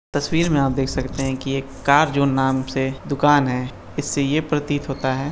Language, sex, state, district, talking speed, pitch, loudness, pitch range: Hindi, male, Bihar, Madhepura, 225 wpm, 135 Hz, -21 LUFS, 130-145 Hz